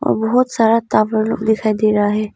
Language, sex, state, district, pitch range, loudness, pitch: Hindi, female, Arunachal Pradesh, Papum Pare, 215-225 Hz, -16 LUFS, 220 Hz